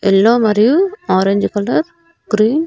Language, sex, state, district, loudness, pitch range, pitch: Telugu, female, Andhra Pradesh, Annamaya, -14 LUFS, 205-335 Hz, 225 Hz